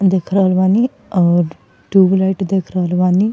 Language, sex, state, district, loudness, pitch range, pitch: Bhojpuri, female, Uttar Pradesh, Ghazipur, -15 LUFS, 180-195 Hz, 190 Hz